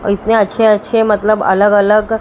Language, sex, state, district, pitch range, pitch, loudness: Hindi, female, Maharashtra, Mumbai Suburban, 205-220 Hz, 210 Hz, -12 LUFS